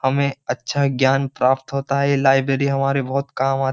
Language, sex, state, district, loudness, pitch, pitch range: Hindi, male, Uttar Pradesh, Jyotiba Phule Nagar, -19 LUFS, 135 Hz, 135-140 Hz